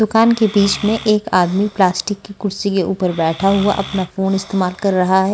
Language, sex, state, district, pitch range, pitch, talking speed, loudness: Hindi, female, Delhi, New Delhi, 190-205 Hz, 195 Hz, 215 wpm, -16 LUFS